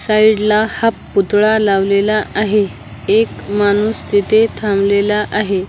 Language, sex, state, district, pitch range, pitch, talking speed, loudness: Marathi, female, Maharashtra, Washim, 200-215 Hz, 210 Hz, 115 wpm, -14 LUFS